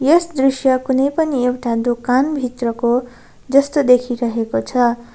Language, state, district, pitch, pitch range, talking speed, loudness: Nepali, West Bengal, Darjeeling, 250 Hz, 240-270 Hz, 105 wpm, -17 LUFS